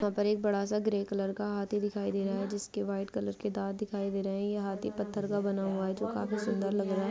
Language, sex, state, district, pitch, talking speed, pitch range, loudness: Hindi, female, Chhattisgarh, Kabirdham, 200 Hz, 295 wpm, 195-205 Hz, -33 LUFS